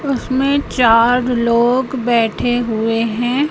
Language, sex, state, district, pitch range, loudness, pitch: Hindi, female, Madhya Pradesh, Katni, 230-260 Hz, -15 LUFS, 245 Hz